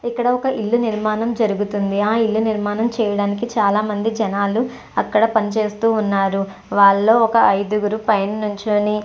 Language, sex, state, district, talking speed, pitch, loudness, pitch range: Telugu, female, Andhra Pradesh, Chittoor, 140 wpm, 215 Hz, -18 LUFS, 205-225 Hz